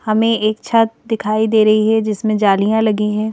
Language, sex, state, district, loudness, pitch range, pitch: Hindi, female, Madhya Pradesh, Bhopal, -15 LUFS, 215-220 Hz, 215 Hz